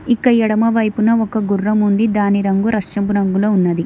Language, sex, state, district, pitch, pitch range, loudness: Telugu, female, Telangana, Hyderabad, 210 Hz, 200-225 Hz, -15 LUFS